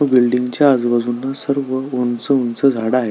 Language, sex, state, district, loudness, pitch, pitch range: Marathi, male, Maharashtra, Solapur, -17 LUFS, 125 Hz, 120-135 Hz